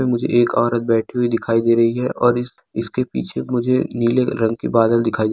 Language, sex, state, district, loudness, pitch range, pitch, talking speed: Hindi, male, Bihar, Araria, -18 LUFS, 115-120 Hz, 115 Hz, 205 wpm